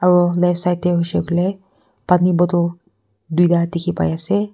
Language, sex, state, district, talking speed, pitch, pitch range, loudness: Nagamese, female, Nagaland, Kohima, 160 wpm, 175 Hz, 170-180 Hz, -18 LUFS